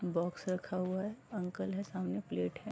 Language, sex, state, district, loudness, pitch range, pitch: Hindi, female, Uttar Pradesh, Varanasi, -38 LUFS, 170-190 Hz, 185 Hz